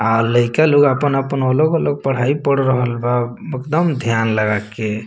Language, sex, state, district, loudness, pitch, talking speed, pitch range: Bhojpuri, male, Bihar, Muzaffarpur, -17 LUFS, 130 Hz, 155 wpm, 115-140 Hz